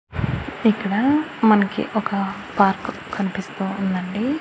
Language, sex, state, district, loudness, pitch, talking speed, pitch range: Telugu, female, Andhra Pradesh, Annamaya, -21 LUFS, 200 Hz, 80 wpm, 195-220 Hz